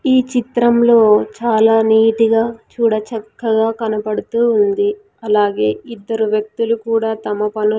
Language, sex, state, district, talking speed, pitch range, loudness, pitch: Telugu, female, Andhra Pradesh, Sri Satya Sai, 110 wpm, 215-235 Hz, -15 LUFS, 225 Hz